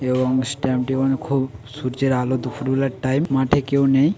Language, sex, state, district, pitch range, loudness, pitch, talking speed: Bengali, male, West Bengal, Paschim Medinipur, 130-135 Hz, -21 LUFS, 130 Hz, 145 wpm